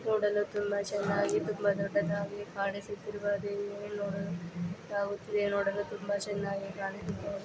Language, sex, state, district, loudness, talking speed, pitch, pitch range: Kannada, female, Karnataka, Dakshina Kannada, -34 LUFS, 105 wpm, 200 Hz, 200-205 Hz